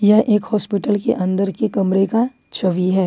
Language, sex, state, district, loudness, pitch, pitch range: Hindi, female, Jharkhand, Ranchi, -18 LUFS, 205 Hz, 190-220 Hz